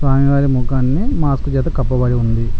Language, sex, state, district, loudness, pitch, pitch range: Telugu, male, Telangana, Mahabubabad, -16 LUFS, 135 Hz, 125-140 Hz